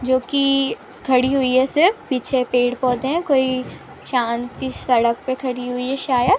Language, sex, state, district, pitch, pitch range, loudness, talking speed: Hindi, female, Jharkhand, Sahebganj, 260 Hz, 250-270 Hz, -19 LUFS, 180 wpm